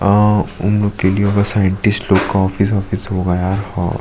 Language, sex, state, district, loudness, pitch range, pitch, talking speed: Hindi, male, Chhattisgarh, Sukma, -16 LUFS, 95-105 Hz, 100 Hz, 225 wpm